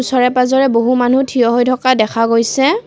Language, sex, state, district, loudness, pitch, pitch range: Assamese, female, Assam, Kamrup Metropolitan, -13 LUFS, 250 Hz, 235-260 Hz